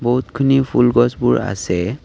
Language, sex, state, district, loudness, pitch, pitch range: Assamese, male, Assam, Kamrup Metropolitan, -16 LUFS, 120 Hz, 115-130 Hz